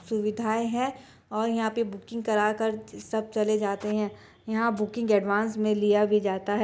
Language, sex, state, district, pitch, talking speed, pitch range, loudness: Hindi, female, Chhattisgarh, Bastar, 215 Hz, 180 wpm, 210-225 Hz, -27 LUFS